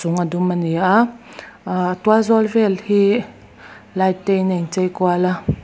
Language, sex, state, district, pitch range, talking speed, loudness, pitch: Mizo, female, Mizoram, Aizawl, 180-215 Hz, 180 wpm, -18 LUFS, 185 Hz